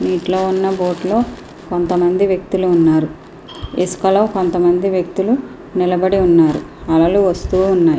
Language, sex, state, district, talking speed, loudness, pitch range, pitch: Telugu, female, Andhra Pradesh, Srikakulam, 105 wpm, -15 LUFS, 175-190 Hz, 180 Hz